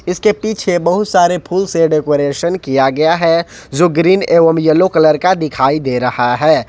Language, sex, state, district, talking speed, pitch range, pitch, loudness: Hindi, male, Jharkhand, Ranchi, 180 wpm, 150-180 Hz, 165 Hz, -13 LUFS